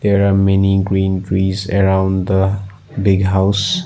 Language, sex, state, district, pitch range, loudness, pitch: English, male, Assam, Sonitpur, 95-100 Hz, -15 LUFS, 95 Hz